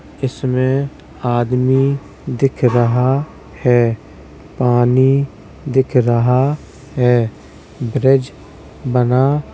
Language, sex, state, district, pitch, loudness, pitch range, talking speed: Hindi, male, Uttar Pradesh, Jalaun, 130 Hz, -16 LUFS, 120-135 Hz, 75 wpm